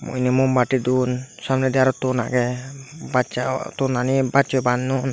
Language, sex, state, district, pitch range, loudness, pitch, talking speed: Chakma, male, Tripura, Unakoti, 125-130 Hz, -21 LUFS, 130 Hz, 130 wpm